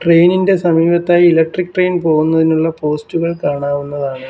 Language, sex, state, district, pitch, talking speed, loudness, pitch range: Malayalam, male, Kerala, Kollam, 165 Hz, 110 wpm, -14 LUFS, 150-175 Hz